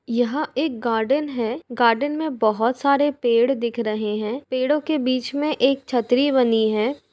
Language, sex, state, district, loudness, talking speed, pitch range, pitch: Hindi, female, Uttar Pradesh, Jalaun, -21 LUFS, 170 wpm, 235-285 Hz, 255 Hz